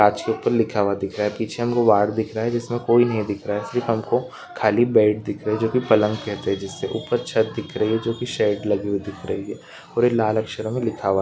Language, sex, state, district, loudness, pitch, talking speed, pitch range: Hindi, male, Uttarakhand, Uttarkashi, -22 LUFS, 110 Hz, 285 wpm, 105-115 Hz